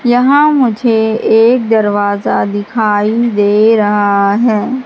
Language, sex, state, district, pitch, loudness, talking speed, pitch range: Hindi, female, Madhya Pradesh, Katni, 220 Hz, -11 LUFS, 100 wpm, 205-240 Hz